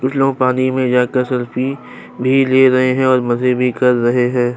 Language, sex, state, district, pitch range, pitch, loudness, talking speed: Hindi, male, Chhattisgarh, Kabirdham, 125-130 Hz, 130 Hz, -15 LUFS, 210 wpm